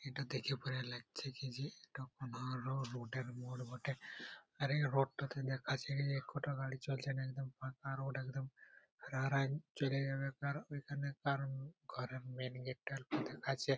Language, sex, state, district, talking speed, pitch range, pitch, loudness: Bengali, male, West Bengal, Purulia, 120 wpm, 130-140 Hz, 135 Hz, -42 LUFS